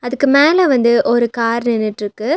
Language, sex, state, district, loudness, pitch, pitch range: Tamil, female, Tamil Nadu, Nilgiris, -14 LUFS, 240 Hz, 230-275 Hz